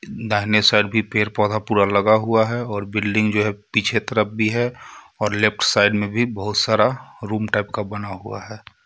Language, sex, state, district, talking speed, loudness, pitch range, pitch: Hindi, male, Jharkhand, Ranchi, 205 wpm, -19 LUFS, 105-110 Hz, 105 Hz